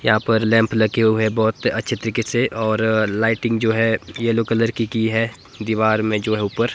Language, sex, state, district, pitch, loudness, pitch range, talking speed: Hindi, male, Himachal Pradesh, Shimla, 110 Hz, -19 LUFS, 110-115 Hz, 205 wpm